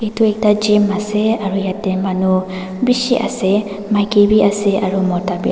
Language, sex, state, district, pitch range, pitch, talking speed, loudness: Nagamese, female, Nagaland, Dimapur, 190-210 Hz, 205 Hz, 175 wpm, -16 LUFS